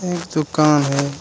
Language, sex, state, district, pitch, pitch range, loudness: Hindi, male, Jharkhand, Deoghar, 155 Hz, 140-165 Hz, -18 LUFS